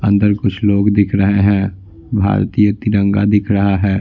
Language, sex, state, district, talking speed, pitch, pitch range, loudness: Hindi, male, Bihar, Patna, 165 wpm, 100 Hz, 100-105 Hz, -14 LUFS